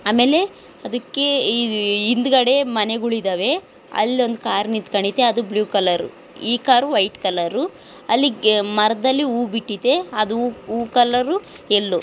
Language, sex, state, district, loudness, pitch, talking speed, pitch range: Kannada, female, Karnataka, Dharwad, -19 LUFS, 230 Hz, 100 wpm, 210-255 Hz